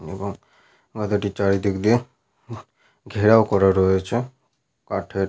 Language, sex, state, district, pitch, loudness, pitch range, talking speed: Bengali, male, Jharkhand, Sahebganj, 100 Hz, -21 LUFS, 95-115 Hz, 90 wpm